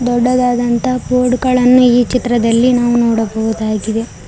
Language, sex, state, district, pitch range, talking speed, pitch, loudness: Kannada, female, Karnataka, Koppal, 230-250 Hz, 100 wpm, 240 Hz, -13 LUFS